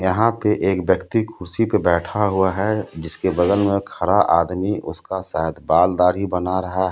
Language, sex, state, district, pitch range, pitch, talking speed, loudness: Hindi, male, Jharkhand, Ranchi, 90-105 Hz, 95 Hz, 180 wpm, -20 LUFS